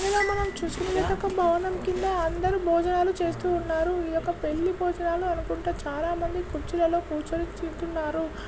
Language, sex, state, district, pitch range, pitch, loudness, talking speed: Telugu, male, Telangana, Karimnagar, 335-365 Hz, 345 Hz, -27 LUFS, 120 wpm